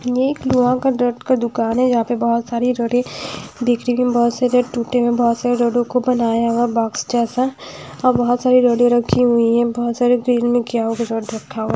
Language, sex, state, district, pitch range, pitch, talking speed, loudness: Hindi, female, Haryana, Jhajjar, 235-250 Hz, 240 Hz, 185 wpm, -17 LUFS